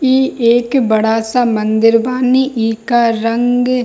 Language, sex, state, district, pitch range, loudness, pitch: Hindi, female, Bihar, Darbhanga, 225-255 Hz, -13 LUFS, 240 Hz